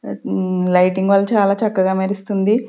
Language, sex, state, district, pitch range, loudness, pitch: Telugu, female, Andhra Pradesh, Sri Satya Sai, 190-205 Hz, -17 LUFS, 195 Hz